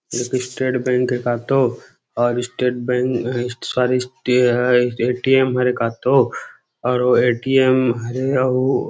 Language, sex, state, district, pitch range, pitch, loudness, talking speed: Chhattisgarhi, male, Chhattisgarh, Rajnandgaon, 120-130 Hz, 125 Hz, -18 LUFS, 110 wpm